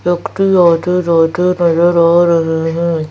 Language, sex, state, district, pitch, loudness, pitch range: Hindi, female, Madhya Pradesh, Bhopal, 170 Hz, -12 LUFS, 165-180 Hz